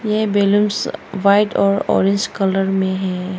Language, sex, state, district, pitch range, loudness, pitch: Hindi, female, Arunachal Pradesh, Longding, 190-205 Hz, -17 LUFS, 200 Hz